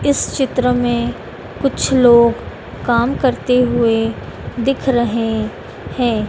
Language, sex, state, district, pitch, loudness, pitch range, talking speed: Hindi, female, Madhya Pradesh, Dhar, 240 Hz, -16 LUFS, 230-255 Hz, 105 wpm